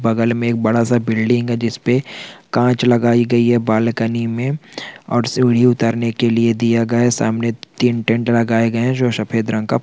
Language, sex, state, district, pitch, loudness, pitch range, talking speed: Hindi, male, Chhattisgarh, Balrampur, 115 Hz, -16 LUFS, 115-120 Hz, 195 wpm